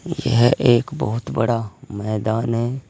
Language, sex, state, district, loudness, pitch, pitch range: Hindi, male, Uttar Pradesh, Saharanpur, -20 LUFS, 115 Hz, 110-125 Hz